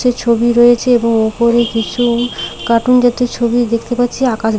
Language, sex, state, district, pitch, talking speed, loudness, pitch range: Bengali, female, West Bengal, Paschim Medinipur, 240 Hz, 155 wpm, -13 LUFS, 230-245 Hz